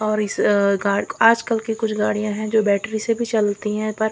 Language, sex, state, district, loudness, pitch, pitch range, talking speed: Hindi, female, Bihar, Katihar, -20 LUFS, 215 Hz, 210-220 Hz, 250 wpm